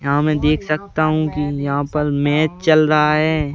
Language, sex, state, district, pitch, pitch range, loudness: Hindi, male, Madhya Pradesh, Bhopal, 150 Hz, 145-155 Hz, -17 LUFS